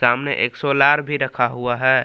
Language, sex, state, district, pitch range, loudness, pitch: Hindi, male, Jharkhand, Palamu, 125-140 Hz, -18 LUFS, 130 Hz